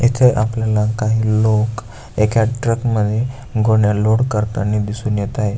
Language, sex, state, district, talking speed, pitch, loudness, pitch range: Marathi, male, Maharashtra, Aurangabad, 140 wpm, 110 Hz, -17 LUFS, 105-115 Hz